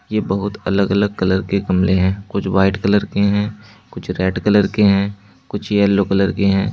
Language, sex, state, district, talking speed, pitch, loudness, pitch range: Hindi, male, Uttar Pradesh, Shamli, 205 wpm, 100 Hz, -17 LUFS, 95-100 Hz